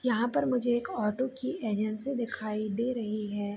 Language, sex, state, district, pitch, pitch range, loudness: Hindi, female, Bihar, Begusarai, 230 Hz, 215-250 Hz, -31 LUFS